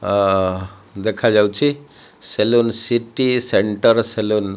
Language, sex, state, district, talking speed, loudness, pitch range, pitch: Odia, male, Odisha, Malkangiri, 90 wpm, -17 LUFS, 100-120 Hz, 110 Hz